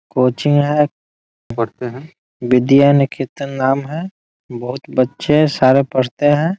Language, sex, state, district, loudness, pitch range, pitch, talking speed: Hindi, male, Bihar, Muzaffarpur, -16 LUFS, 125-145 Hz, 135 Hz, 130 wpm